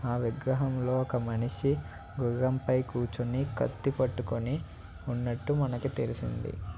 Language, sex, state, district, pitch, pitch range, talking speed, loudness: Telugu, male, Andhra Pradesh, Visakhapatnam, 125 Hz, 115-130 Hz, 115 wpm, -31 LUFS